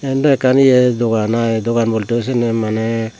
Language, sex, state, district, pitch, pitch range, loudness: Chakma, male, Tripura, Dhalai, 115 Hz, 115-130 Hz, -15 LUFS